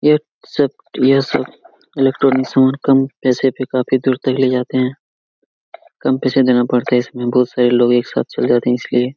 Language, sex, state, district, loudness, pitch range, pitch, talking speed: Hindi, male, Jharkhand, Jamtara, -16 LUFS, 125-135 Hz, 130 Hz, 205 wpm